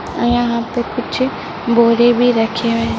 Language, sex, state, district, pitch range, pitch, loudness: Hindi, female, Bihar, Gopalganj, 230-240 Hz, 235 Hz, -15 LUFS